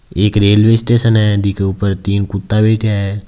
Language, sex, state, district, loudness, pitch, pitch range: Hindi, male, Rajasthan, Nagaur, -13 LUFS, 105 Hz, 100-110 Hz